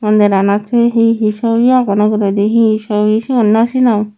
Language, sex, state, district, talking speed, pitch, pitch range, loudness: Chakma, female, Tripura, Unakoti, 170 wpm, 215 Hz, 210-235 Hz, -12 LUFS